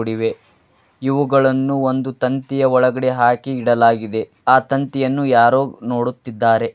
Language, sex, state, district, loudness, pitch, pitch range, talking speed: Kannada, male, Karnataka, Dharwad, -17 LUFS, 130 Hz, 120-135 Hz, 100 wpm